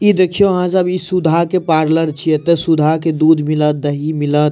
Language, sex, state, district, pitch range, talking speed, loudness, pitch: Maithili, male, Bihar, Madhepura, 155-180 Hz, 215 wpm, -14 LUFS, 160 Hz